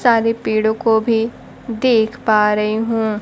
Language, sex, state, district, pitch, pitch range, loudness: Hindi, female, Bihar, Kaimur, 225 Hz, 220-230 Hz, -17 LUFS